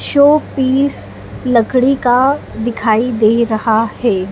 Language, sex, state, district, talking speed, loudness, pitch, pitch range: Hindi, female, Madhya Pradesh, Dhar, 95 wpm, -14 LUFS, 245 Hz, 225-265 Hz